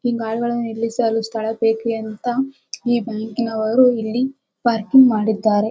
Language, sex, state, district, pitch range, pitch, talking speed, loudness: Kannada, female, Karnataka, Bellary, 220-245 Hz, 230 Hz, 135 wpm, -19 LUFS